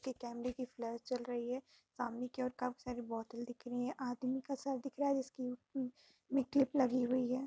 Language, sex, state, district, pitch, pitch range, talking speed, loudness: Hindi, female, Bihar, Vaishali, 250 Hz, 245-265 Hz, 235 wpm, -40 LUFS